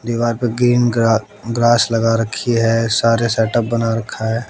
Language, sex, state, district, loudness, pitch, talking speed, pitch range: Hindi, male, Haryana, Jhajjar, -16 LUFS, 115 Hz, 175 wpm, 115-120 Hz